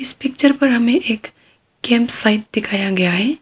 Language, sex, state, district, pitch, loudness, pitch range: Hindi, female, Arunachal Pradesh, Papum Pare, 235 Hz, -16 LUFS, 215-270 Hz